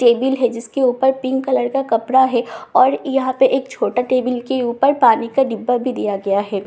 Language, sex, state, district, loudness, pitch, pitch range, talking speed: Hindi, female, Bihar, Katihar, -17 LUFS, 255 Hz, 235-265 Hz, 245 wpm